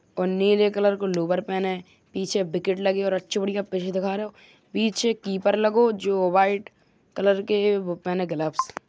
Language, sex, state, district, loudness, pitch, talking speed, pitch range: Bundeli, female, Uttar Pradesh, Hamirpur, -24 LUFS, 195 Hz, 175 wpm, 185-205 Hz